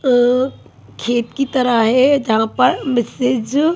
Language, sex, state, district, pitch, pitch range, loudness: Hindi, female, Haryana, Charkhi Dadri, 250 Hz, 240-265 Hz, -16 LUFS